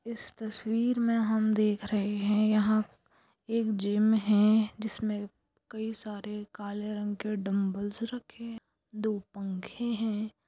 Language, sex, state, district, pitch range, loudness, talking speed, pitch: Hindi, female, Andhra Pradesh, Anantapur, 205-220 Hz, -30 LUFS, 135 wpm, 215 Hz